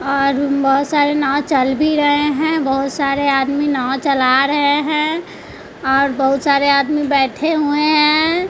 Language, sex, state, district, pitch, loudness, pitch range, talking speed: Hindi, female, Bihar, West Champaran, 285 Hz, -15 LUFS, 275-300 Hz, 155 wpm